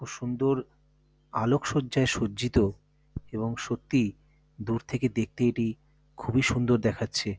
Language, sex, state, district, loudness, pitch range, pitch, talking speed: Bengali, male, West Bengal, North 24 Parganas, -28 LUFS, 110-130 Hz, 120 Hz, 105 wpm